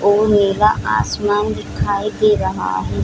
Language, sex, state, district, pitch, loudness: Hindi, female, Bihar, Jamui, 200 Hz, -17 LUFS